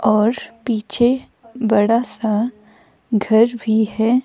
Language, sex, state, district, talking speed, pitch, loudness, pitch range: Hindi, female, Himachal Pradesh, Shimla, 100 wpm, 225 Hz, -18 LUFS, 215-235 Hz